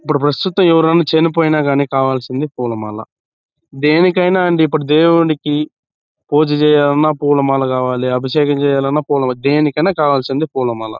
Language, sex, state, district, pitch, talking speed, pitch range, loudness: Telugu, male, Andhra Pradesh, Chittoor, 150 Hz, 120 wpm, 135-155 Hz, -14 LUFS